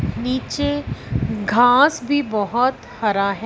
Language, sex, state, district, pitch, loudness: Hindi, female, Punjab, Fazilka, 210 Hz, -19 LUFS